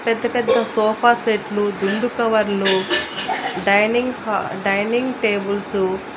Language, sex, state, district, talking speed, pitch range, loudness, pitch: Telugu, female, Andhra Pradesh, Annamaya, 105 wpm, 200-235 Hz, -19 LUFS, 215 Hz